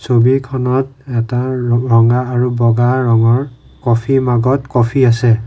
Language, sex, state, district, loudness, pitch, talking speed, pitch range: Assamese, male, Assam, Kamrup Metropolitan, -14 LUFS, 125 Hz, 110 wpm, 120-130 Hz